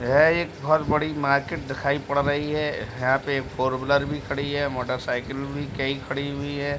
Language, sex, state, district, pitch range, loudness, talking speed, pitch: Hindi, male, Uttar Pradesh, Deoria, 135-145 Hz, -25 LUFS, 210 wpm, 140 Hz